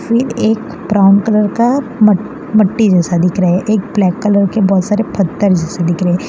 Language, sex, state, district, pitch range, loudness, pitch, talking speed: Hindi, female, Gujarat, Valsad, 185-220 Hz, -13 LUFS, 205 Hz, 190 wpm